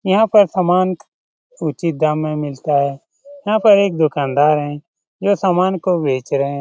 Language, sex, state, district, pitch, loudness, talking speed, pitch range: Hindi, male, Bihar, Lakhisarai, 170 Hz, -16 LUFS, 190 wpm, 145-195 Hz